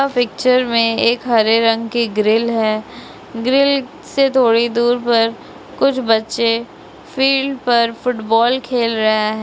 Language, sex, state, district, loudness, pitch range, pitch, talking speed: Hindi, female, West Bengal, Purulia, -16 LUFS, 225-255 Hz, 235 Hz, 120 wpm